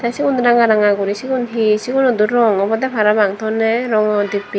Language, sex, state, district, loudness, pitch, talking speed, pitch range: Chakma, female, Tripura, Dhalai, -15 LUFS, 220 Hz, 185 wpm, 210-240 Hz